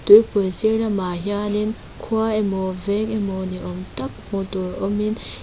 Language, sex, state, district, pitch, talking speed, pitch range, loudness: Mizo, female, Mizoram, Aizawl, 200 Hz, 175 wpm, 185-215 Hz, -22 LUFS